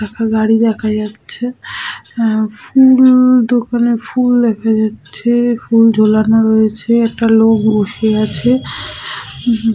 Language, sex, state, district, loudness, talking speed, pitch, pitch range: Bengali, female, West Bengal, Malda, -13 LUFS, 105 wpm, 225 Hz, 215-235 Hz